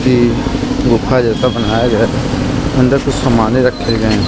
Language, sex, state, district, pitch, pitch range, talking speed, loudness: Hindi, male, Maharashtra, Mumbai Suburban, 125 Hz, 115-130 Hz, 180 wpm, -13 LUFS